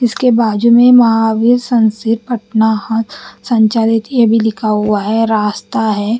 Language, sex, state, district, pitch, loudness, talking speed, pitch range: Hindi, female, Bihar, Patna, 225 Hz, -12 LUFS, 145 wpm, 220-235 Hz